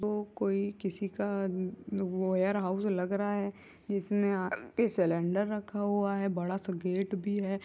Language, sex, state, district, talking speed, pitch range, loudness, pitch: Hindi, female, Uttar Pradesh, Jyotiba Phule Nagar, 155 wpm, 190-205 Hz, -32 LUFS, 200 Hz